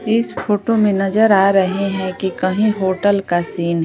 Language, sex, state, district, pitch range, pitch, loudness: Hindi, female, Bihar, Patna, 185-210 Hz, 195 Hz, -16 LUFS